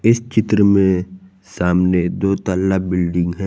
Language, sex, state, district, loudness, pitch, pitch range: Hindi, male, Jharkhand, Garhwa, -17 LUFS, 95 Hz, 90-100 Hz